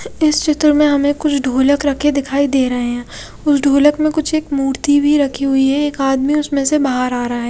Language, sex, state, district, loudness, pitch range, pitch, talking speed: Hindi, female, Bihar, Katihar, -15 LUFS, 270-295 Hz, 285 Hz, 230 wpm